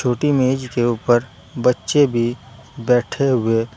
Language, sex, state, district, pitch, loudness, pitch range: Hindi, male, Uttar Pradesh, Saharanpur, 125 Hz, -18 LUFS, 115-130 Hz